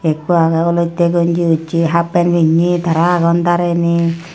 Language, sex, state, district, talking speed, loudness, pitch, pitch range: Chakma, female, Tripura, Dhalai, 150 wpm, -14 LUFS, 170 Hz, 165-175 Hz